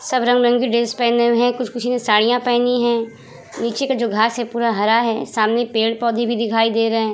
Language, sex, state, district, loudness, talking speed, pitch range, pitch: Hindi, female, Bihar, Vaishali, -18 LUFS, 225 wpm, 225-245 Hz, 235 Hz